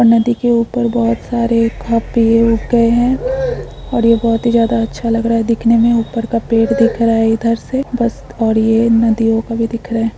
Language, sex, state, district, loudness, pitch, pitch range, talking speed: Hindi, female, Chhattisgarh, Bilaspur, -14 LUFS, 230 Hz, 230-235 Hz, 220 wpm